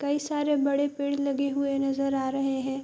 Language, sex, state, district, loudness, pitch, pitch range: Hindi, female, Bihar, Sitamarhi, -27 LUFS, 280 Hz, 275-285 Hz